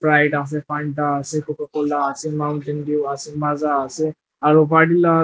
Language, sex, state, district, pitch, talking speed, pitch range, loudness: Nagamese, male, Nagaland, Dimapur, 150 Hz, 135 wpm, 145-155 Hz, -20 LUFS